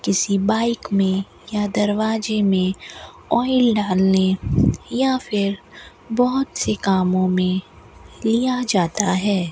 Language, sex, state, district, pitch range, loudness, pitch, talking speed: Hindi, female, Rajasthan, Bikaner, 190-225 Hz, -20 LUFS, 205 Hz, 105 wpm